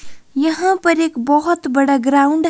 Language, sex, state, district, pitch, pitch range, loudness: Hindi, female, Himachal Pradesh, Shimla, 300 Hz, 280-335 Hz, -15 LUFS